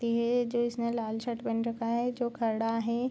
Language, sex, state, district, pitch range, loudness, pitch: Hindi, female, Bihar, Supaul, 230-240 Hz, -31 LUFS, 235 Hz